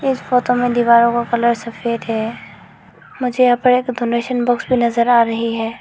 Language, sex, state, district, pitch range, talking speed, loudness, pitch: Hindi, female, Arunachal Pradesh, Lower Dibang Valley, 235-250 Hz, 195 wpm, -16 LUFS, 235 Hz